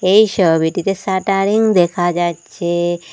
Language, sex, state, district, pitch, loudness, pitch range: Bengali, female, Assam, Hailakandi, 180 Hz, -15 LUFS, 175-195 Hz